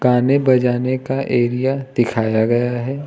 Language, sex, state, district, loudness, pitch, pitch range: Hindi, male, Uttar Pradesh, Lucknow, -17 LUFS, 125 Hz, 120-135 Hz